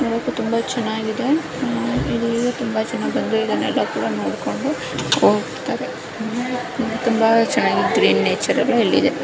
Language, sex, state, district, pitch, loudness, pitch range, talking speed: Kannada, female, Karnataka, Bijapur, 230 Hz, -20 LUFS, 225-245 Hz, 135 wpm